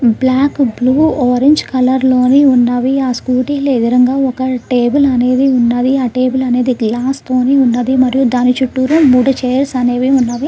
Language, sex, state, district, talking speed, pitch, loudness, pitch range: Telugu, female, Andhra Pradesh, Krishna, 145 wpm, 255 Hz, -12 LUFS, 250-270 Hz